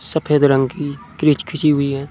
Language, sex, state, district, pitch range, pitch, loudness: Hindi, male, Uttar Pradesh, Muzaffarnagar, 140-150 Hz, 145 Hz, -17 LUFS